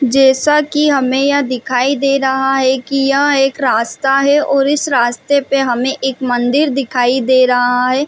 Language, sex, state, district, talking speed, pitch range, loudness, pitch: Hindi, female, Chhattisgarh, Bastar, 180 wpm, 255-280 Hz, -13 LUFS, 270 Hz